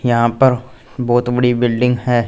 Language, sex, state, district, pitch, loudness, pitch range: Hindi, male, Punjab, Fazilka, 120 Hz, -15 LUFS, 120-125 Hz